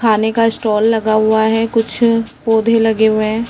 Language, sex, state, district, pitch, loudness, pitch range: Hindi, female, Chhattisgarh, Raigarh, 225 Hz, -14 LUFS, 220-230 Hz